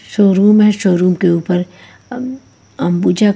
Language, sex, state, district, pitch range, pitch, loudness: Hindi, female, Haryana, Charkhi Dadri, 180-210 Hz, 195 Hz, -13 LUFS